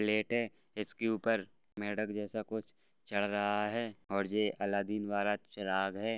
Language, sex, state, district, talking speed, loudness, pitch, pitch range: Hindi, male, Bihar, Gopalganj, 165 wpm, -36 LUFS, 105 Hz, 100-110 Hz